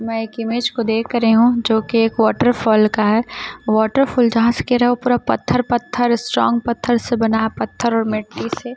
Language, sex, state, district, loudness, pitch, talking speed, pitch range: Hindi, female, Chhattisgarh, Raipur, -17 LUFS, 230 Hz, 225 wpm, 225-245 Hz